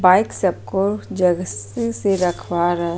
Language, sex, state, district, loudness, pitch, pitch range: Hindi, female, Uttar Pradesh, Jyotiba Phule Nagar, -20 LUFS, 180 Hz, 170-190 Hz